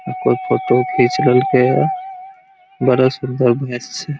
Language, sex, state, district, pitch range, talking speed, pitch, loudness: Maithili, male, Bihar, Araria, 125-190 Hz, 130 wpm, 130 Hz, -16 LUFS